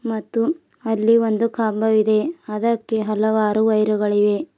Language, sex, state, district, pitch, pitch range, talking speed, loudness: Kannada, female, Karnataka, Bidar, 220 Hz, 215-230 Hz, 90 wpm, -19 LUFS